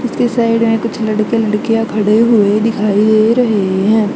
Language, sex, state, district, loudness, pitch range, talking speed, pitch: Hindi, female, Haryana, Charkhi Dadri, -13 LUFS, 210-230 Hz, 160 wpm, 220 Hz